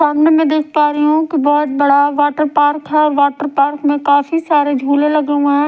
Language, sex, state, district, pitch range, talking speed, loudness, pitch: Hindi, female, Odisha, Sambalpur, 285-305 Hz, 220 wpm, -13 LUFS, 295 Hz